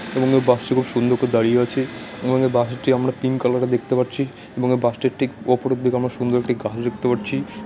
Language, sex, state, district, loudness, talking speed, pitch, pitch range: Bengali, male, West Bengal, Malda, -20 LUFS, 235 wpm, 125 Hz, 120-130 Hz